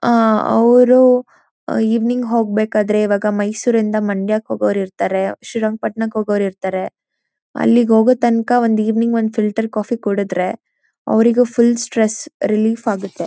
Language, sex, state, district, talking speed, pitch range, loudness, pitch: Kannada, female, Karnataka, Mysore, 120 wpm, 210-235 Hz, -16 LUFS, 220 Hz